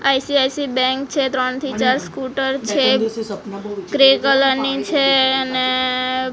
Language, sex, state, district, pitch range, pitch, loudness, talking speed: Gujarati, female, Gujarat, Gandhinagar, 255-275 Hz, 265 Hz, -17 LUFS, 125 wpm